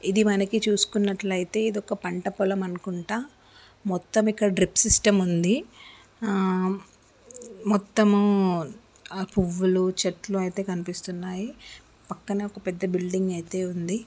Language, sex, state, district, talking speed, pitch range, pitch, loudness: Telugu, female, Andhra Pradesh, Srikakulam, 105 wpm, 185-210 Hz, 195 Hz, -25 LUFS